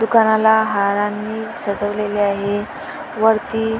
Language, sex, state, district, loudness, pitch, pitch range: Marathi, female, Maharashtra, Dhule, -18 LUFS, 215 Hz, 205-225 Hz